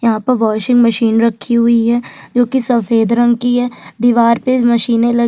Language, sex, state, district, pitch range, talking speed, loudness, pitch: Hindi, female, Chhattisgarh, Jashpur, 230-245 Hz, 195 wpm, -13 LUFS, 235 Hz